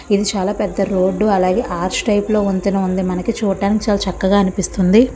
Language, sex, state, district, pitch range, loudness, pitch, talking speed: Telugu, female, Andhra Pradesh, Visakhapatnam, 190-205 Hz, -17 LUFS, 195 Hz, 185 wpm